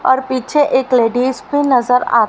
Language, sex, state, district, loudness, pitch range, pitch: Hindi, female, Haryana, Rohtak, -14 LUFS, 245-265 Hz, 255 Hz